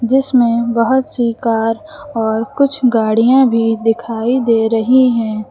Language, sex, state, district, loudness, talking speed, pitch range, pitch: Hindi, female, Uttar Pradesh, Lucknow, -14 LUFS, 130 wpm, 225-260 Hz, 235 Hz